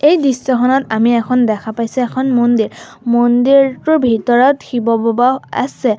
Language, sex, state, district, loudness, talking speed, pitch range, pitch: Assamese, female, Assam, Sonitpur, -14 LUFS, 120 wpm, 230-265 Hz, 245 Hz